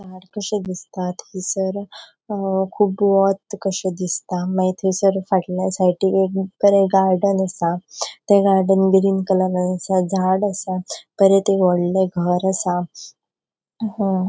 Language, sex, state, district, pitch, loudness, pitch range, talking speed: Konkani, female, Goa, North and South Goa, 190 Hz, -19 LUFS, 185-195 Hz, 120 wpm